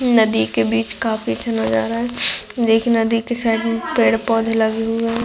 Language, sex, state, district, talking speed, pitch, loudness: Hindi, female, Chhattisgarh, Raigarh, 185 wpm, 225 Hz, -18 LUFS